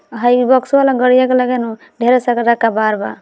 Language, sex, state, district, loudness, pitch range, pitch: Hindi, female, Bihar, Gopalganj, -13 LUFS, 230-255 Hz, 245 Hz